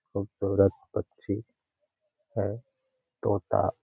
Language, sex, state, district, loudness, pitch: Hindi, male, Jharkhand, Jamtara, -30 LUFS, 205 Hz